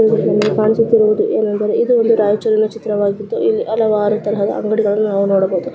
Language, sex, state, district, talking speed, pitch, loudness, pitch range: Kannada, male, Karnataka, Raichur, 155 wpm, 215 Hz, -15 LUFS, 210-225 Hz